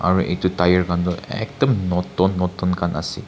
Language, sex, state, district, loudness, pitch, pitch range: Nagamese, male, Nagaland, Kohima, -20 LUFS, 90 Hz, 90-95 Hz